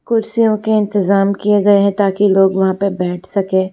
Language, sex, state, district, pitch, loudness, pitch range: Hindi, female, Gujarat, Valsad, 200 Hz, -14 LUFS, 190-205 Hz